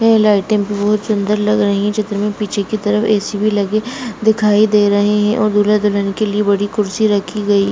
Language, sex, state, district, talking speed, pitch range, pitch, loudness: Hindi, female, Bihar, Bhagalpur, 240 wpm, 205-215 Hz, 210 Hz, -15 LUFS